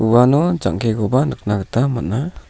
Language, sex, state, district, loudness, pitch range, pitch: Garo, male, Meghalaya, South Garo Hills, -17 LUFS, 110-135 Hz, 120 Hz